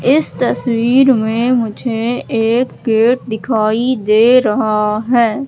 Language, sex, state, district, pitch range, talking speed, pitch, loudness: Hindi, female, Madhya Pradesh, Katni, 220-250 Hz, 110 wpm, 235 Hz, -14 LUFS